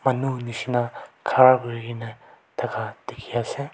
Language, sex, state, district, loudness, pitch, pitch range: Nagamese, male, Nagaland, Kohima, -23 LUFS, 120 Hz, 115-130 Hz